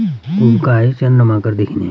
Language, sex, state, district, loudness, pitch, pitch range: Garhwali, male, Uttarakhand, Uttarkashi, -13 LUFS, 115 Hz, 110-130 Hz